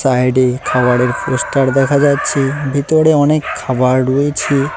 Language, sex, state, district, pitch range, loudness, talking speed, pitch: Bengali, male, West Bengal, Cooch Behar, 130-145 Hz, -14 LUFS, 115 wpm, 135 Hz